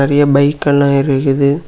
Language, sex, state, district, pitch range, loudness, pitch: Tamil, male, Tamil Nadu, Kanyakumari, 140-145 Hz, -12 LUFS, 140 Hz